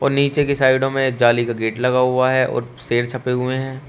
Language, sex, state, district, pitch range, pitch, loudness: Hindi, male, Uttar Pradesh, Shamli, 125-135 Hz, 130 Hz, -18 LUFS